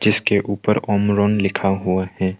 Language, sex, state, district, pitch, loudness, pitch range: Hindi, male, Arunachal Pradesh, Longding, 100 Hz, -18 LUFS, 95-105 Hz